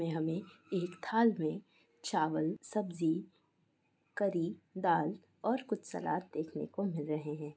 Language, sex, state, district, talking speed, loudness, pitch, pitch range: Hindi, female, Bihar, Sitamarhi, 135 wpm, -36 LUFS, 165 Hz, 155-195 Hz